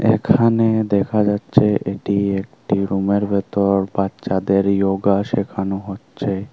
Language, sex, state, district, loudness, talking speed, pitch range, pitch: Bengali, male, Tripura, Unakoti, -19 LUFS, 100 wpm, 95-105 Hz, 100 Hz